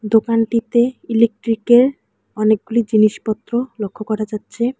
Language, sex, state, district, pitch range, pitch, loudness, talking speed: Bengali, female, West Bengal, Alipurduar, 215-235 Hz, 225 Hz, -17 LUFS, 85 wpm